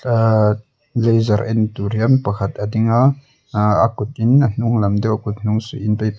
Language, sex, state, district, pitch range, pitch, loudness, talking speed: Mizo, male, Mizoram, Aizawl, 105-120 Hz, 110 Hz, -17 LUFS, 205 wpm